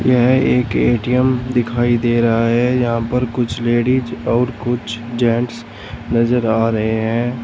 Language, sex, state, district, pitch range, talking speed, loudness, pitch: Hindi, male, Uttar Pradesh, Shamli, 115-125 Hz, 145 wpm, -17 LUFS, 120 Hz